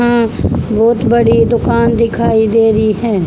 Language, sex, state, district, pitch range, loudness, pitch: Hindi, female, Haryana, Charkhi Dadri, 220-235 Hz, -12 LUFS, 230 Hz